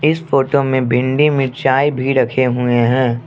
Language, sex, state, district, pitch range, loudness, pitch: Hindi, male, Arunachal Pradesh, Lower Dibang Valley, 125-140 Hz, -15 LUFS, 130 Hz